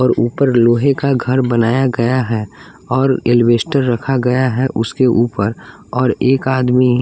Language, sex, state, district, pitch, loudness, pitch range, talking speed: Hindi, male, Bihar, West Champaran, 125 Hz, -15 LUFS, 120-130 Hz, 160 wpm